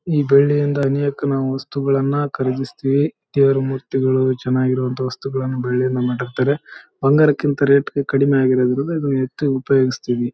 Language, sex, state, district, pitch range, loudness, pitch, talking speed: Kannada, male, Karnataka, Raichur, 130-140 Hz, -18 LUFS, 135 Hz, 105 wpm